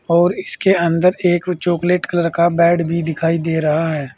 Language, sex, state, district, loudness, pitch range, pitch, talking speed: Hindi, male, Uttar Pradesh, Saharanpur, -16 LUFS, 165-175 Hz, 170 Hz, 185 wpm